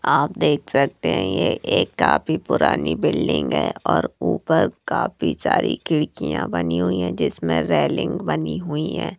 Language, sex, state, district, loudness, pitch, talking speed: Hindi, female, Punjab, Kapurthala, -21 LUFS, 90 Hz, 150 wpm